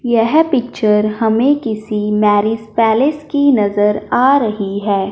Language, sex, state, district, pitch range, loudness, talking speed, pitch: Hindi, male, Punjab, Fazilka, 210-260 Hz, -14 LUFS, 130 wpm, 220 Hz